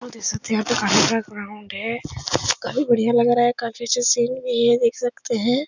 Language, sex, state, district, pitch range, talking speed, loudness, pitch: Hindi, female, Uttar Pradesh, Etah, 225-245 Hz, 200 wpm, -20 LUFS, 235 Hz